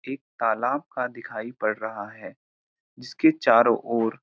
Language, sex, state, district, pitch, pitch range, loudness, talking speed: Hindi, male, Uttarakhand, Uttarkashi, 115 Hz, 110-135 Hz, -24 LUFS, 155 wpm